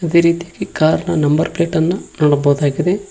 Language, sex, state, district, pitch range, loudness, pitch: Kannada, male, Karnataka, Koppal, 155-170 Hz, -16 LUFS, 165 Hz